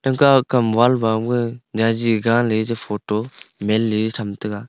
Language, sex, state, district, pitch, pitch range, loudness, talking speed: Wancho, male, Arunachal Pradesh, Longding, 115 Hz, 110-120 Hz, -19 LUFS, 155 wpm